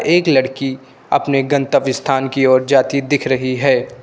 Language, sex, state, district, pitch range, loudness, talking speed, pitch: Hindi, male, Uttar Pradesh, Lucknow, 130-140 Hz, -16 LUFS, 165 wpm, 135 Hz